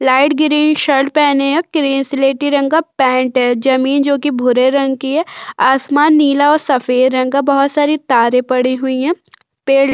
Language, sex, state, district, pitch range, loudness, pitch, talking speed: Hindi, female, Uttar Pradesh, Budaun, 260-295 Hz, -13 LUFS, 275 Hz, 195 wpm